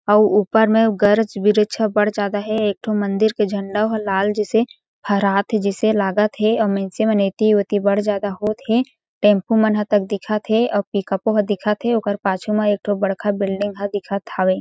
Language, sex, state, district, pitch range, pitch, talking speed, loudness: Chhattisgarhi, female, Chhattisgarh, Jashpur, 200-215 Hz, 210 Hz, 215 wpm, -19 LUFS